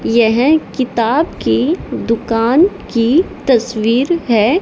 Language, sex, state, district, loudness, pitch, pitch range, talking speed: Hindi, female, Haryana, Charkhi Dadri, -14 LUFS, 245 Hz, 230-315 Hz, 90 wpm